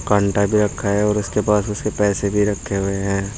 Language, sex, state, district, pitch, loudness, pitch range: Hindi, male, Uttar Pradesh, Saharanpur, 105 Hz, -19 LUFS, 100-105 Hz